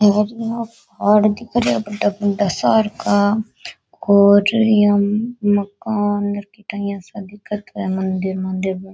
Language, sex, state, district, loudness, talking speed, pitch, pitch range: Rajasthani, female, Rajasthan, Nagaur, -18 LUFS, 130 wpm, 205 Hz, 200-215 Hz